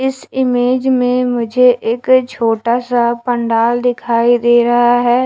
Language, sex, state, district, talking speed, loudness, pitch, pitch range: Hindi, female, Haryana, Charkhi Dadri, 135 wpm, -13 LUFS, 245 Hz, 235-250 Hz